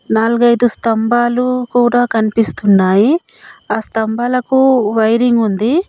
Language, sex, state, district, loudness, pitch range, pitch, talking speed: Telugu, female, Telangana, Komaram Bheem, -13 LUFS, 220-245 Hz, 235 Hz, 80 wpm